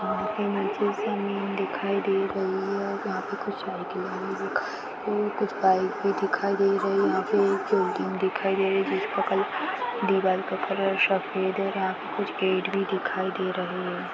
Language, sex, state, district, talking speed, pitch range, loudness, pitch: Hindi, female, Bihar, Saran, 205 wpm, 190-200 Hz, -27 LUFS, 195 Hz